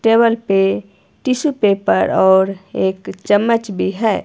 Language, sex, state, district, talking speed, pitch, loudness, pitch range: Hindi, female, Himachal Pradesh, Shimla, 125 wpm, 205 Hz, -16 LUFS, 195-230 Hz